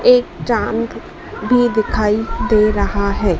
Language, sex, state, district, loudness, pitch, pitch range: Hindi, female, Madhya Pradesh, Dhar, -16 LUFS, 215 Hz, 200-245 Hz